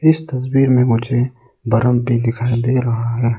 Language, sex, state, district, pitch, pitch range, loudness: Hindi, male, Arunachal Pradesh, Lower Dibang Valley, 120 Hz, 115-130 Hz, -17 LUFS